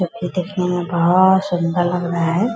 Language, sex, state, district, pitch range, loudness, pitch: Hindi, female, Bihar, Purnia, 175-185 Hz, -18 LUFS, 180 Hz